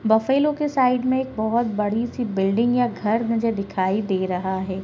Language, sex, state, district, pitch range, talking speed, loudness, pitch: Hindi, female, Bihar, Kishanganj, 195-245 Hz, 200 wpm, -22 LUFS, 225 Hz